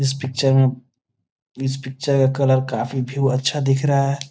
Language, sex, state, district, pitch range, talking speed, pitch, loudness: Hindi, male, Bihar, Gopalganj, 130-135 Hz, 180 wpm, 135 Hz, -20 LUFS